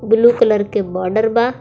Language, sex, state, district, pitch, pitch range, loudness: Bhojpuri, female, Jharkhand, Palamu, 220 Hz, 210-235 Hz, -15 LUFS